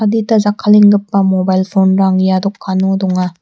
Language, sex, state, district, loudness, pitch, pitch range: Garo, female, Meghalaya, West Garo Hills, -12 LUFS, 195 Hz, 190-205 Hz